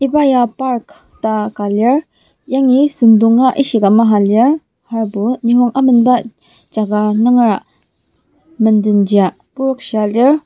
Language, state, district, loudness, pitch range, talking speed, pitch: Ao, Nagaland, Dimapur, -13 LUFS, 215-260 Hz, 110 wpm, 235 Hz